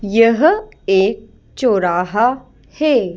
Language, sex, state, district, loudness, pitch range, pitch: Hindi, female, Madhya Pradesh, Bhopal, -16 LUFS, 195-265 Hz, 225 Hz